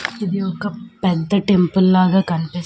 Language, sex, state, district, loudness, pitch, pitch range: Telugu, female, Andhra Pradesh, Manyam, -18 LUFS, 190 Hz, 180-200 Hz